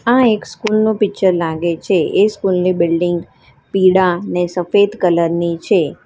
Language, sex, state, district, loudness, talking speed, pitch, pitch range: Gujarati, female, Gujarat, Valsad, -15 LUFS, 170 wpm, 180 Hz, 170-205 Hz